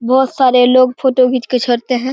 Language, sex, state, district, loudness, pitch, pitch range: Hindi, male, Bihar, Begusarai, -12 LUFS, 255 Hz, 250-260 Hz